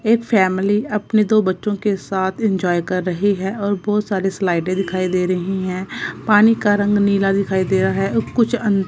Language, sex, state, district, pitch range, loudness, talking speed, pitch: Hindi, female, Punjab, Kapurthala, 190-210 Hz, -18 LUFS, 195 wpm, 195 Hz